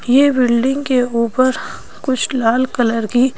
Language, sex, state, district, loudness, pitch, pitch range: Hindi, female, Madhya Pradesh, Bhopal, -16 LUFS, 255 Hz, 240-260 Hz